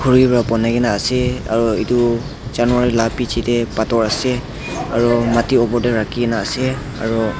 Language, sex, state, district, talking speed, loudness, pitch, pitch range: Nagamese, male, Nagaland, Dimapur, 160 wpm, -17 LUFS, 120 Hz, 115-125 Hz